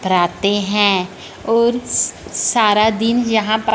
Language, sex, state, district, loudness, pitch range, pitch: Hindi, female, Punjab, Fazilka, -16 LUFS, 200-225 Hz, 220 Hz